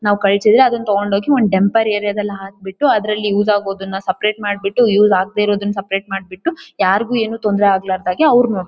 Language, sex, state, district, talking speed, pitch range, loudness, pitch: Kannada, female, Karnataka, Bellary, 165 wpm, 195-215 Hz, -16 LUFS, 205 Hz